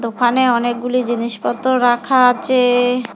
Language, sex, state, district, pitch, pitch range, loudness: Bengali, female, West Bengal, Alipurduar, 245 Hz, 240-255 Hz, -15 LUFS